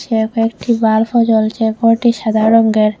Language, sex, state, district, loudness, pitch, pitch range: Bengali, female, Assam, Hailakandi, -13 LUFS, 225 Hz, 220-230 Hz